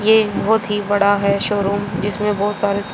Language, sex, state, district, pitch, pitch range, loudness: Hindi, female, Haryana, Jhajjar, 205 Hz, 200-210 Hz, -18 LUFS